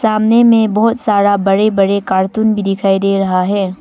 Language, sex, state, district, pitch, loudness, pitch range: Hindi, female, Arunachal Pradesh, Longding, 200 Hz, -12 LUFS, 195-220 Hz